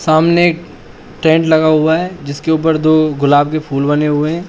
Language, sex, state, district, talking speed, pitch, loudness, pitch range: Hindi, male, Uttar Pradesh, Shamli, 185 wpm, 155 Hz, -13 LUFS, 150-160 Hz